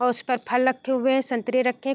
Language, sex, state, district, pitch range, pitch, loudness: Hindi, female, Uttarakhand, Tehri Garhwal, 245-260 Hz, 250 Hz, -23 LUFS